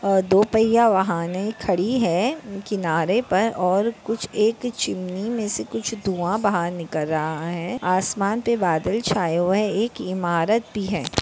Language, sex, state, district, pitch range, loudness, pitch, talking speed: Hindi, female, Maharashtra, Chandrapur, 175-220 Hz, -22 LUFS, 195 Hz, 160 wpm